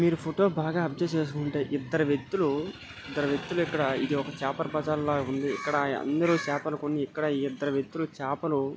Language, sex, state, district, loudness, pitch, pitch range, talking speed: Telugu, male, Telangana, Nalgonda, -29 LUFS, 145 Hz, 140-160 Hz, 180 wpm